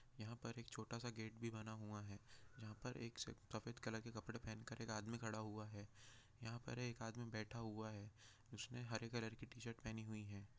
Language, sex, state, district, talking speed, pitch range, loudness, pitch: Hindi, male, Bihar, Jahanabad, 200 wpm, 110-115 Hz, -52 LUFS, 110 Hz